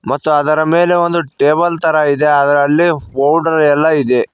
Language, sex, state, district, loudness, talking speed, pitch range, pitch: Kannada, male, Karnataka, Koppal, -12 LUFS, 165 wpm, 145-165 Hz, 155 Hz